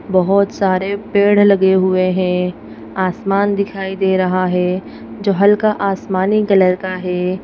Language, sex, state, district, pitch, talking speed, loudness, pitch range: Hindi, female, Madhya Pradesh, Bhopal, 190 Hz, 135 wpm, -15 LUFS, 185-200 Hz